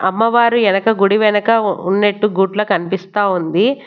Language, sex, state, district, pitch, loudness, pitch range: Telugu, female, Andhra Pradesh, Annamaya, 205 Hz, -15 LUFS, 195-225 Hz